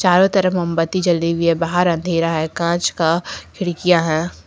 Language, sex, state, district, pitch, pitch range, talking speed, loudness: Hindi, female, Jharkhand, Ranchi, 170 Hz, 165-180 Hz, 175 wpm, -18 LUFS